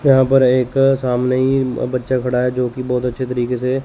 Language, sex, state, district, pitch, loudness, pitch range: Hindi, male, Chandigarh, Chandigarh, 130 Hz, -17 LUFS, 125-130 Hz